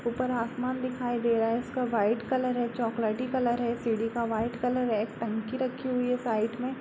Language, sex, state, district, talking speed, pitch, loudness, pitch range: Hindi, female, Uttar Pradesh, Jalaun, 220 wpm, 240 Hz, -29 LUFS, 230-250 Hz